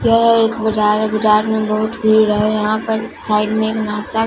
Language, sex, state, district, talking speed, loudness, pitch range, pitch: Hindi, female, Punjab, Fazilka, 195 wpm, -15 LUFS, 215-220 Hz, 220 Hz